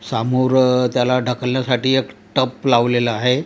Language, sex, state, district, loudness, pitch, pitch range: Marathi, male, Maharashtra, Gondia, -17 LUFS, 125 Hz, 125-130 Hz